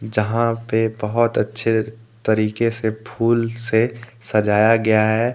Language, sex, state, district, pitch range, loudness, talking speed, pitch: Hindi, male, Jharkhand, Deoghar, 110-115 Hz, -19 LUFS, 125 wpm, 110 Hz